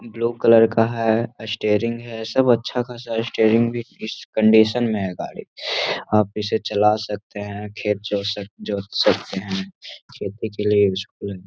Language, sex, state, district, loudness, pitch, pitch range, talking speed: Hindi, male, Bihar, Gaya, -21 LUFS, 110 Hz, 105-115 Hz, 125 wpm